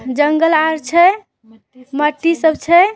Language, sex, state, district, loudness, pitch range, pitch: Magahi, female, Bihar, Samastipur, -14 LUFS, 275-335 Hz, 315 Hz